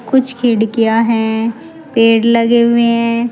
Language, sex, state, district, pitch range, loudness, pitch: Hindi, female, Uttar Pradesh, Saharanpur, 225-240 Hz, -13 LUFS, 235 Hz